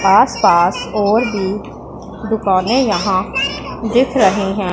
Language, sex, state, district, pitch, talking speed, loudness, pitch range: Hindi, female, Punjab, Pathankot, 205 Hz, 115 wpm, -15 LUFS, 190-225 Hz